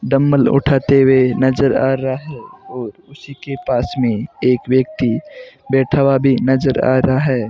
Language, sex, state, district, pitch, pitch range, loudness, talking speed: Hindi, male, Rajasthan, Bikaner, 135 Hz, 130-140 Hz, -15 LUFS, 170 wpm